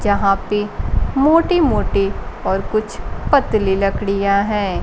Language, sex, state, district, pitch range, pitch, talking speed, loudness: Hindi, female, Bihar, Kaimur, 195-215 Hz, 200 Hz, 100 wpm, -17 LUFS